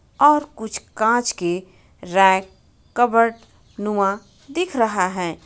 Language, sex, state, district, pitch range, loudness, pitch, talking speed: Hindi, female, Jharkhand, Ranchi, 190-240 Hz, -20 LUFS, 220 Hz, 110 wpm